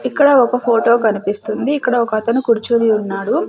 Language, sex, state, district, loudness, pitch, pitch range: Telugu, female, Andhra Pradesh, Sri Satya Sai, -15 LUFS, 235 Hz, 215-250 Hz